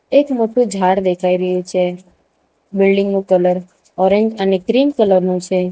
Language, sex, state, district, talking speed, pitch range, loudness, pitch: Gujarati, female, Gujarat, Valsad, 155 wpm, 180-210 Hz, -15 LUFS, 190 Hz